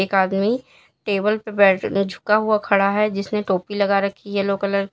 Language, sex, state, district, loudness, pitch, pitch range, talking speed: Hindi, female, Uttar Pradesh, Lalitpur, -20 LUFS, 200 Hz, 195-210 Hz, 195 wpm